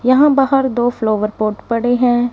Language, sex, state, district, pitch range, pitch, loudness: Hindi, female, Punjab, Fazilka, 220-260 Hz, 245 Hz, -15 LUFS